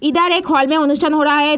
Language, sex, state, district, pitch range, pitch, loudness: Hindi, female, Bihar, Sitamarhi, 295-320 Hz, 300 Hz, -14 LUFS